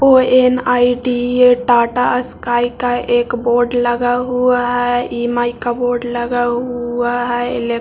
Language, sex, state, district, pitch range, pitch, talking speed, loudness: Hindi, male, Bihar, Jahanabad, 240-245 Hz, 245 Hz, 130 wpm, -15 LUFS